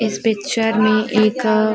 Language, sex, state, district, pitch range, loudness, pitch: Hindi, female, Uttar Pradesh, Varanasi, 215-225 Hz, -17 LUFS, 215 Hz